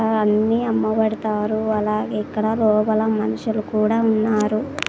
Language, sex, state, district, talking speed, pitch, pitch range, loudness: Telugu, female, Andhra Pradesh, Sri Satya Sai, 125 wpm, 215 Hz, 215-220 Hz, -20 LUFS